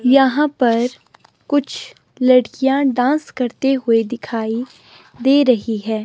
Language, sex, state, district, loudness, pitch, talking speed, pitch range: Hindi, female, Himachal Pradesh, Shimla, -17 LUFS, 250 Hz, 110 wpm, 230-270 Hz